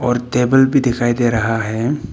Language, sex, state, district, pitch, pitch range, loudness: Hindi, male, Arunachal Pradesh, Papum Pare, 120 Hz, 115-125 Hz, -16 LUFS